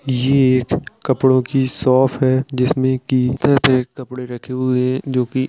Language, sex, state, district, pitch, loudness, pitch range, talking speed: Hindi, male, Uttar Pradesh, Jalaun, 130 Hz, -17 LUFS, 125-130 Hz, 185 wpm